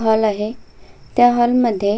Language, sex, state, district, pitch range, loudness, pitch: Marathi, female, Maharashtra, Sindhudurg, 210-240 Hz, -17 LUFS, 220 Hz